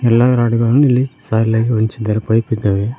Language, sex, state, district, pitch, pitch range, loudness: Kannada, male, Karnataka, Koppal, 115 Hz, 110-120 Hz, -15 LUFS